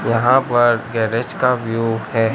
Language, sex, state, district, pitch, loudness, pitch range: Hindi, male, Gujarat, Gandhinagar, 115 Hz, -17 LUFS, 115-120 Hz